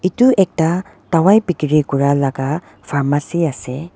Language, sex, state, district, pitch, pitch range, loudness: Nagamese, female, Nagaland, Dimapur, 160 Hz, 140-180 Hz, -16 LUFS